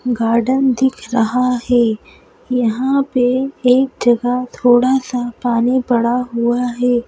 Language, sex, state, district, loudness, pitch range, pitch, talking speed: Hindi, female, Madhya Pradesh, Bhopal, -16 LUFS, 240-255 Hz, 245 Hz, 120 wpm